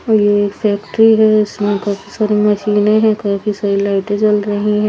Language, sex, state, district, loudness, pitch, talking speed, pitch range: Hindi, female, Haryana, Charkhi Dadri, -14 LUFS, 210 Hz, 195 wpm, 205-215 Hz